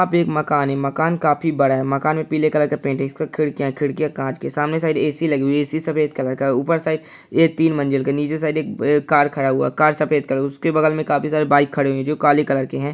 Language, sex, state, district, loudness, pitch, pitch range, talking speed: Hindi, male, Bihar, Saharsa, -19 LUFS, 150 Hz, 140-155 Hz, 305 wpm